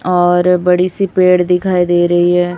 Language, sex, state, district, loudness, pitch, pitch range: Hindi, male, Chhattisgarh, Raipur, -12 LUFS, 180 Hz, 175-180 Hz